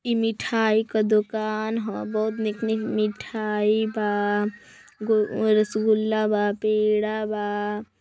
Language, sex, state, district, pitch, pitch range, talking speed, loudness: Hindi, female, Uttar Pradesh, Deoria, 215 Hz, 210-220 Hz, 110 wpm, -24 LUFS